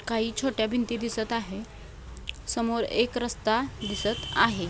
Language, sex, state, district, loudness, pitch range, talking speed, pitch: Marathi, female, Maharashtra, Nagpur, -28 LUFS, 195-230 Hz, 125 wpm, 220 Hz